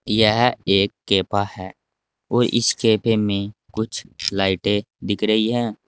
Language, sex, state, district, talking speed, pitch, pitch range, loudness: Hindi, male, Uttar Pradesh, Saharanpur, 135 wpm, 105 Hz, 100-110 Hz, -20 LUFS